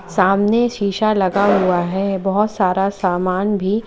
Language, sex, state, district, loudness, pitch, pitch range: Hindi, female, Uttar Pradesh, Lalitpur, -17 LUFS, 195 Hz, 185-205 Hz